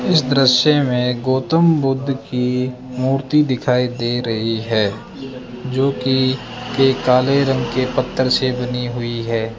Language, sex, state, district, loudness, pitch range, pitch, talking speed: Hindi, male, Rajasthan, Jaipur, -18 LUFS, 125-135 Hz, 130 Hz, 140 wpm